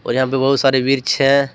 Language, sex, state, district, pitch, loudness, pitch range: Hindi, male, Jharkhand, Deoghar, 135 Hz, -16 LUFS, 130-135 Hz